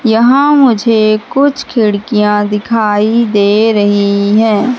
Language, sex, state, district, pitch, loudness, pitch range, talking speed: Hindi, female, Madhya Pradesh, Katni, 215 Hz, -10 LUFS, 210-235 Hz, 100 wpm